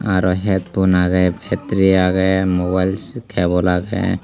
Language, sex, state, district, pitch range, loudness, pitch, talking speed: Chakma, male, Tripura, Dhalai, 90-95 Hz, -17 LUFS, 95 Hz, 115 wpm